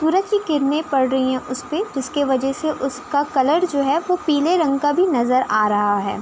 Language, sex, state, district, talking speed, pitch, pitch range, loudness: Hindi, female, Uttar Pradesh, Budaun, 220 wpm, 285 Hz, 260-315 Hz, -19 LUFS